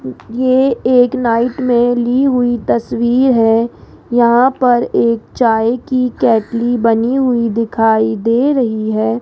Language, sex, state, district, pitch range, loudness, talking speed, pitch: Hindi, female, Rajasthan, Jaipur, 230-250 Hz, -13 LUFS, 130 wpm, 240 Hz